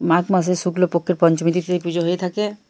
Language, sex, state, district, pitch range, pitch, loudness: Bengali, female, West Bengal, Purulia, 170-180 Hz, 180 Hz, -19 LUFS